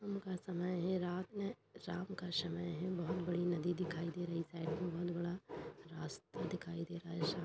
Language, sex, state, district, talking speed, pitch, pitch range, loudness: Hindi, female, Uttar Pradesh, Budaun, 210 wpm, 175 Hz, 170-180 Hz, -42 LUFS